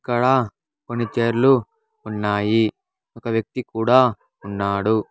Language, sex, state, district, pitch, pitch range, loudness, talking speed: Telugu, male, Andhra Pradesh, Sri Satya Sai, 115 Hz, 110-130 Hz, -20 LUFS, 95 wpm